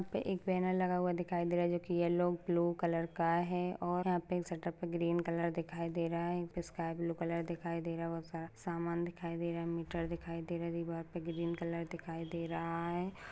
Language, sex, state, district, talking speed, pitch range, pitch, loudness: Hindi, female, Rajasthan, Nagaur, 245 wpm, 170-175 Hz, 170 Hz, -37 LUFS